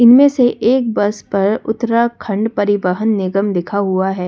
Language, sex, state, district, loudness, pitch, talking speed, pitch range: Hindi, female, Delhi, New Delhi, -15 LUFS, 205 Hz, 155 wpm, 195-235 Hz